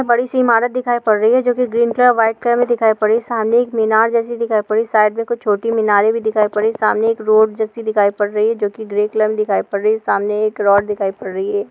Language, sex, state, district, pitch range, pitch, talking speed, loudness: Hindi, female, Bihar, Bhagalpur, 210-235 Hz, 220 Hz, 275 wpm, -16 LUFS